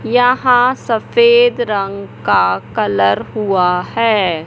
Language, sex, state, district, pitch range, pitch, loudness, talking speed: Hindi, male, Madhya Pradesh, Katni, 185-250 Hz, 225 Hz, -14 LUFS, 95 wpm